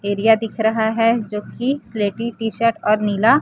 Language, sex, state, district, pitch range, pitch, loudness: Hindi, female, Chhattisgarh, Raipur, 210-230 Hz, 225 Hz, -19 LUFS